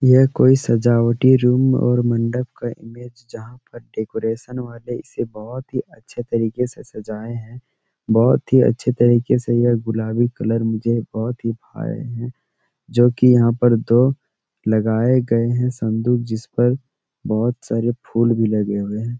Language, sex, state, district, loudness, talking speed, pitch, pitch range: Hindi, male, Bihar, Araria, -19 LUFS, 160 wpm, 120 Hz, 115-125 Hz